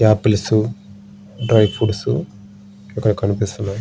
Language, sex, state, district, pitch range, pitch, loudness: Telugu, male, Andhra Pradesh, Srikakulam, 100-110 Hz, 100 Hz, -18 LUFS